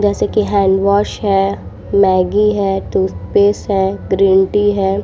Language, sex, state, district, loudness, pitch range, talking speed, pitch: Hindi, female, Uttar Pradesh, Muzaffarnagar, -14 LUFS, 190-205 Hz, 130 wpm, 195 Hz